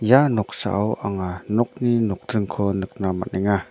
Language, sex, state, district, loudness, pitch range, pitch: Garo, male, Meghalaya, North Garo Hills, -22 LUFS, 95-115 Hz, 100 Hz